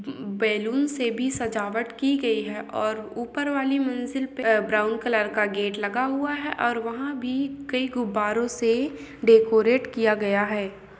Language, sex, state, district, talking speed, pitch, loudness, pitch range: Hindi, female, Chhattisgarh, Balrampur, 160 wpm, 235 Hz, -24 LUFS, 215-260 Hz